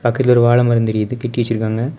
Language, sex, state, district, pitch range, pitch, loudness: Tamil, male, Tamil Nadu, Kanyakumari, 115-125 Hz, 120 Hz, -16 LUFS